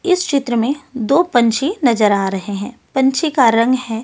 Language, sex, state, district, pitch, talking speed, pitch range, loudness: Hindi, female, Delhi, New Delhi, 250 Hz, 195 wpm, 225-280 Hz, -16 LUFS